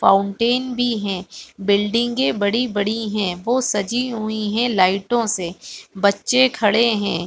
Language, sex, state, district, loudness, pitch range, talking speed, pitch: Hindi, female, Chhattisgarh, Balrampur, -19 LUFS, 200-240 Hz, 125 wpm, 210 Hz